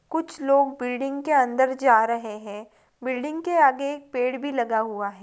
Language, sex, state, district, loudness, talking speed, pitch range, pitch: Hindi, female, Bihar, Gaya, -23 LUFS, 205 wpm, 225-280 Hz, 260 Hz